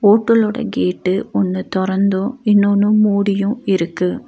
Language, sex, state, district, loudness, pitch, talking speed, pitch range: Tamil, female, Tamil Nadu, Nilgiris, -16 LUFS, 200 Hz, 100 wpm, 185-210 Hz